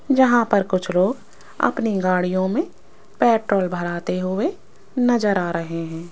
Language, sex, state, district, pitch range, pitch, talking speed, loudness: Hindi, female, Rajasthan, Jaipur, 180-240 Hz, 190 Hz, 135 wpm, -21 LUFS